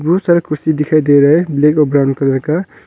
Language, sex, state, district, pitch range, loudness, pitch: Hindi, male, Arunachal Pradesh, Longding, 145-160 Hz, -13 LUFS, 150 Hz